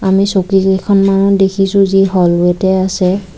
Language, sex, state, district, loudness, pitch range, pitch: Assamese, female, Assam, Kamrup Metropolitan, -11 LUFS, 185-195 Hz, 195 Hz